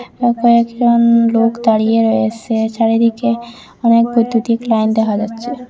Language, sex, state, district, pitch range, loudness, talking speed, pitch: Bengali, female, Assam, Hailakandi, 225-235 Hz, -14 LUFS, 115 wpm, 230 Hz